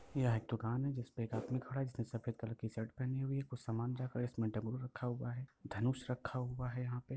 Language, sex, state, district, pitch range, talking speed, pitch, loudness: Hindi, male, Bihar, Sitamarhi, 115-130 Hz, 260 wpm, 125 Hz, -41 LUFS